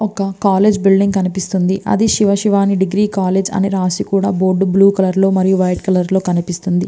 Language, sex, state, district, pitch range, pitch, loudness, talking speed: Telugu, female, Andhra Pradesh, Visakhapatnam, 185-200 Hz, 190 Hz, -14 LUFS, 185 wpm